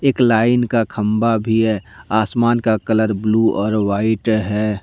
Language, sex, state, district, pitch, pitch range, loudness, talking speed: Hindi, male, Jharkhand, Deoghar, 110 Hz, 105-115 Hz, -17 LUFS, 160 wpm